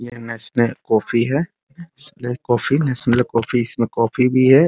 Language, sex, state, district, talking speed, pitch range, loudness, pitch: Hindi, male, Bihar, Muzaffarpur, 140 wpm, 115-135 Hz, -19 LUFS, 120 Hz